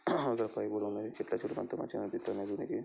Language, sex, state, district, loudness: Telugu, male, Andhra Pradesh, Srikakulam, -37 LUFS